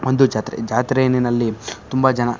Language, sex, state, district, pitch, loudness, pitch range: Kannada, male, Karnataka, Shimoga, 125 Hz, -19 LUFS, 115-130 Hz